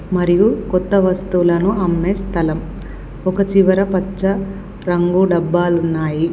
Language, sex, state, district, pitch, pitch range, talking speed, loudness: Telugu, female, Telangana, Komaram Bheem, 185 Hz, 175-195 Hz, 95 wpm, -16 LUFS